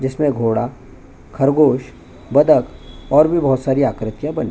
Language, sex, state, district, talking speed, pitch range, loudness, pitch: Hindi, male, Chhattisgarh, Bastar, 135 wpm, 115-145 Hz, -17 LUFS, 130 Hz